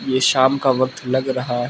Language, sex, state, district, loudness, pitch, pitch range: Hindi, male, Manipur, Imphal West, -18 LUFS, 130 Hz, 125-130 Hz